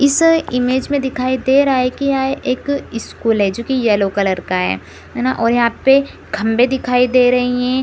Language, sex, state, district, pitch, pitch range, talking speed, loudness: Hindi, female, Bihar, Supaul, 250 Hz, 230-265 Hz, 205 wpm, -16 LUFS